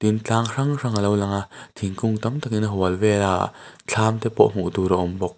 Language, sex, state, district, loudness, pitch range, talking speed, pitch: Mizo, male, Mizoram, Aizawl, -22 LUFS, 95-115 Hz, 245 wpm, 105 Hz